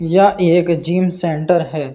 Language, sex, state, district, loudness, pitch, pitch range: Hindi, male, Uttar Pradesh, Jalaun, -14 LUFS, 170 Hz, 165-180 Hz